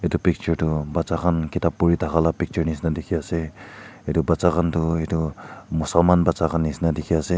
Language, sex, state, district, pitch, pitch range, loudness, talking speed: Nagamese, male, Nagaland, Kohima, 85 Hz, 80-85 Hz, -22 LUFS, 195 wpm